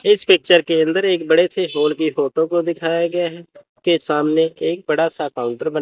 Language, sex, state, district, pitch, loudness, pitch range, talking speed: Hindi, male, Chandigarh, Chandigarh, 165 Hz, -18 LUFS, 155-175 Hz, 215 wpm